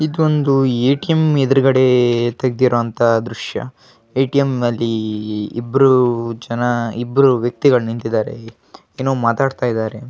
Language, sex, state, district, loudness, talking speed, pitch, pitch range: Kannada, male, Karnataka, Gulbarga, -16 LUFS, 95 wpm, 120 Hz, 115-135 Hz